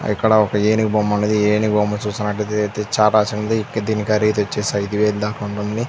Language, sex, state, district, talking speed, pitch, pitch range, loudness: Telugu, male, Andhra Pradesh, Krishna, 175 wpm, 105 Hz, 105-110 Hz, -18 LUFS